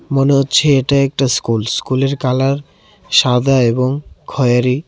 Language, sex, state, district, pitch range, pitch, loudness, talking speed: Bengali, male, Tripura, West Tripura, 125-140 Hz, 135 Hz, -14 LUFS, 125 wpm